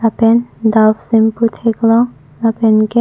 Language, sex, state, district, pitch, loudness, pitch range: Karbi, female, Assam, Karbi Anglong, 225 Hz, -13 LUFS, 220-230 Hz